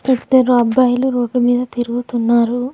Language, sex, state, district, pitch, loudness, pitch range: Telugu, female, Telangana, Mahabubabad, 245 Hz, -15 LUFS, 240-255 Hz